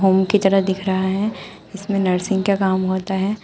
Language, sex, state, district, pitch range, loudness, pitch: Hindi, female, Uttar Pradesh, Shamli, 190-200 Hz, -19 LUFS, 195 Hz